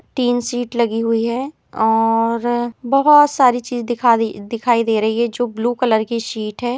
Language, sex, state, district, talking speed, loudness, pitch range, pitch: Hindi, female, Bihar, East Champaran, 175 wpm, -17 LUFS, 225-245 Hz, 235 Hz